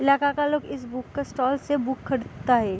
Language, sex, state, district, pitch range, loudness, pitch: Hindi, female, Bihar, East Champaran, 255-285 Hz, -26 LUFS, 265 Hz